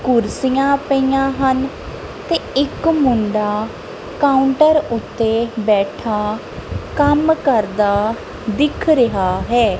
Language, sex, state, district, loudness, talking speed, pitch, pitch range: Punjabi, female, Punjab, Kapurthala, -17 LUFS, 85 wpm, 255 Hz, 215-280 Hz